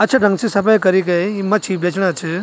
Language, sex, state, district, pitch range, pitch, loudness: Garhwali, male, Uttarakhand, Tehri Garhwal, 180-215 Hz, 195 Hz, -16 LUFS